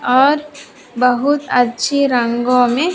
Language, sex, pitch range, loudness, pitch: Hindi, female, 245-285 Hz, -15 LUFS, 250 Hz